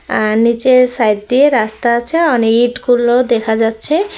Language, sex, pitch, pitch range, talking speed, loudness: Bengali, female, 240 Hz, 225-255 Hz, 130 wpm, -12 LUFS